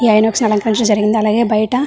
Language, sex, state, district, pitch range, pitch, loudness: Telugu, female, Andhra Pradesh, Visakhapatnam, 215-225 Hz, 220 Hz, -14 LUFS